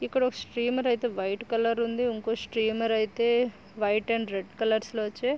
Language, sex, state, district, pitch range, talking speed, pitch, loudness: Telugu, female, Andhra Pradesh, Srikakulam, 215-240 Hz, 200 wpm, 230 Hz, -28 LUFS